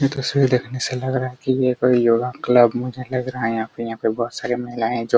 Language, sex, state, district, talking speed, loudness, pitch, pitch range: Hindi, male, Bihar, Araria, 255 wpm, -20 LUFS, 125 Hz, 115-130 Hz